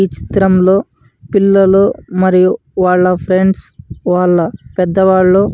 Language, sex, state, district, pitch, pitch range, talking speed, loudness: Telugu, male, Andhra Pradesh, Anantapur, 185 Hz, 180-190 Hz, 100 wpm, -12 LUFS